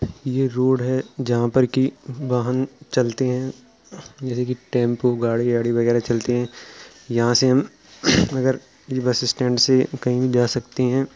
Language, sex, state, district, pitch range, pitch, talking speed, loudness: Hindi, male, Uttar Pradesh, Jalaun, 120-130 Hz, 125 Hz, 150 wpm, -21 LUFS